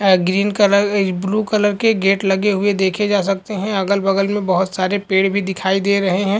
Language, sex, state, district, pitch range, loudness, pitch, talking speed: Hindi, male, Uttar Pradesh, Varanasi, 190-205 Hz, -17 LUFS, 195 Hz, 225 wpm